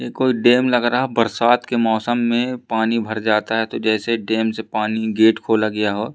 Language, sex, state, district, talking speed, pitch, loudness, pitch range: Hindi, male, Madhya Pradesh, Umaria, 215 wpm, 115 Hz, -18 LUFS, 110-120 Hz